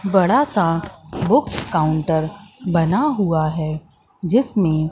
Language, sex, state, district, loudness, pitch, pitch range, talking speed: Hindi, female, Madhya Pradesh, Katni, -19 LUFS, 170 Hz, 160-205 Hz, 95 wpm